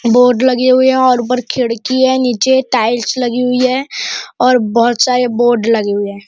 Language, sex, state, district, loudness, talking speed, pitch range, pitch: Hindi, male, Maharashtra, Nagpur, -12 LUFS, 200 wpm, 235-255 Hz, 250 Hz